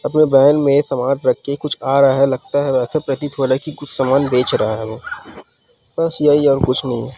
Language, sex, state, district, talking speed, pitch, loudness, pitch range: Chhattisgarhi, female, Chhattisgarh, Rajnandgaon, 225 wpm, 140 Hz, -16 LUFS, 130-145 Hz